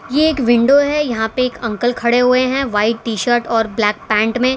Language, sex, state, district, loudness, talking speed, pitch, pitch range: Hindi, female, Gujarat, Valsad, -15 LUFS, 235 wpm, 240 Hz, 225-255 Hz